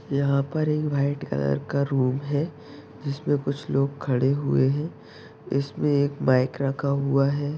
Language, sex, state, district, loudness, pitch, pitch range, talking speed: Hindi, male, Uttar Pradesh, Ghazipur, -25 LUFS, 140 Hz, 135-145 Hz, 160 wpm